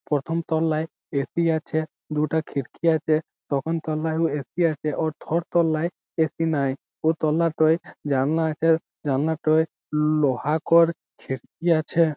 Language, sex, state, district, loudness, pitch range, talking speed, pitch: Bengali, male, West Bengal, Malda, -24 LUFS, 150-165 Hz, 150 wpm, 160 Hz